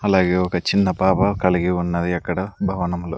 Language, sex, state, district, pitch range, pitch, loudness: Telugu, male, Andhra Pradesh, Sri Satya Sai, 90-95 Hz, 90 Hz, -20 LUFS